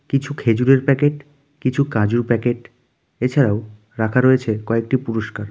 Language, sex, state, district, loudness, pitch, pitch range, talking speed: Bengali, male, West Bengal, Darjeeling, -19 LUFS, 120 Hz, 110-135 Hz, 120 wpm